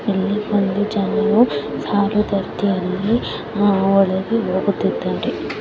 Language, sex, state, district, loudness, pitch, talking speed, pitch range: Kannada, female, Karnataka, Mysore, -19 LUFS, 200 Hz, 75 wpm, 195-210 Hz